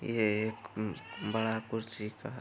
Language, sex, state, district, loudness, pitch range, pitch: Hindi, male, Bihar, Araria, -35 LUFS, 105-110 Hz, 110 Hz